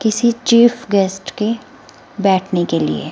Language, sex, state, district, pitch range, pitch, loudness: Hindi, female, Himachal Pradesh, Shimla, 190-235 Hz, 210 Hz, -16 LUFS